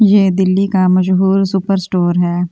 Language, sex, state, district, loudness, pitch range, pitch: Hindi, female, Delhi, New Delhi, -13 LUFS, 185-195 Hz, 190 Hz